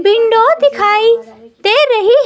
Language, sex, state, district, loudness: Hindi, female, Himachal Pradesh, Shimla, -11 LUFS